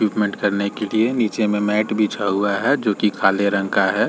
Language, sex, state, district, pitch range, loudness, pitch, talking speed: Hindi, male, Uttar Pradesh, Varanasi, 100-110 Hz, -19 LUFS, 105 Hz, 220 wpm